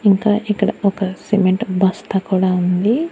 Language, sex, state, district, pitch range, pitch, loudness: Telugu, female, Andhra Pradesh, Annamaya, 185-210 Hz, 195 Hz, -17 LUFS